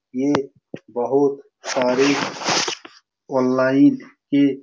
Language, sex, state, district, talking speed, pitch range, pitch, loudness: Hindi, male, Bihar, Saran, 80 wpm, 130-140 Hz, 140 Hz, -19 LUFS